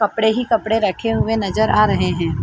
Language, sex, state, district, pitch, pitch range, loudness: Hindi, female, Chhattisgarh, Bilaspur, 220 Hz, 195-225 Hz, -17 LUFS